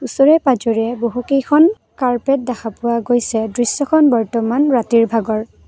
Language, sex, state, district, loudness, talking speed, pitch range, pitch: Assamese, female, Assam, Kamrup Metropolitan, -16 LUFS, 115 wpm, 230-275 Hz, 245 Hz